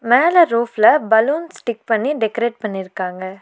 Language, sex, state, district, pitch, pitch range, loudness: Tamil, female, Tamil Nadu, Nilgiris, 230 Hz, 215-290 Hz, -17 LUFS